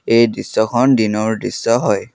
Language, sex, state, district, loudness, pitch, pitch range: Assamese, male, Assam, Kamrup Metropolitan, -16 LUFS, 115 Hz, 110-120 Hz